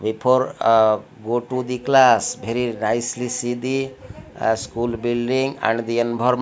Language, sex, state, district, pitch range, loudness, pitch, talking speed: English, male, Odisha, Malkangiri, 115-125 Hz, -20 LUFS, 120 Hz, 150 wpm